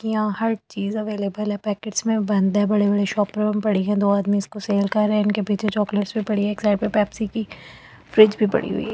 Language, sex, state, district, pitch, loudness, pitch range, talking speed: Hindi, female, Delhi, New Delhi, 210 Hz, -21 LUFS, 205-215 Hz, 235 wpm